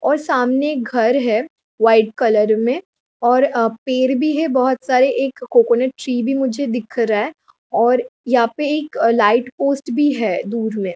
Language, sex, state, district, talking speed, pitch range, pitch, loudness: Hindi, female, Jharkhand, Sahebganj, 175 wpm, 230-270 Hz, 250 Hz, -17 LUFS